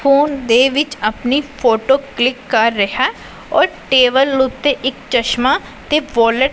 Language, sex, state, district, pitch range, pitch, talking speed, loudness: Punjabi, female, Punjab, Pathankot, 240-275 Hz, 260 Hz, 145 wpm, -15 LUFS